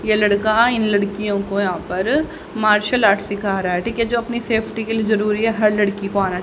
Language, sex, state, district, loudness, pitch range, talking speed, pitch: Hindi, female, Haryana, Jhajjar, -18 LUFS, 200-225 Hz, 235 wpm, 210 Hz